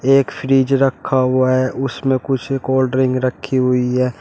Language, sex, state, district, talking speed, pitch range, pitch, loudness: Hindi, male, Uttar Pradesh, Shamli, 170 wpm, 130-135 Hz, 130 Hz, -17 LUFS